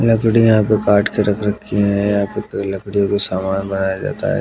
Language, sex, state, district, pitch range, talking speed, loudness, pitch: Hindi, male, Haryana, Jhajjar, 95-105 Hz, 215 wpm, -17 LUFS, 100 Hz